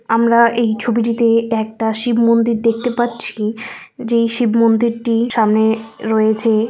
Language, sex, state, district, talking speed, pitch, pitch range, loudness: Bengali, female, West Bengal, Malda, 115 wpm, 230 Hz, 220-235 Hz, -16 LUFS